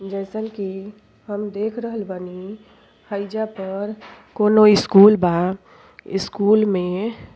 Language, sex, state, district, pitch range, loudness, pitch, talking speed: Bhojpuri, female, Uttar Pradesh, Ghazipur, 195-215 Hz, -19 LUFS, 205 Hz, 115 wpm